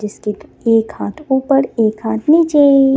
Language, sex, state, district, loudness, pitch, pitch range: Hindi, female, Jharkhand, Deoghar, -15 LUFS, 265 Hz, 220-275 Hz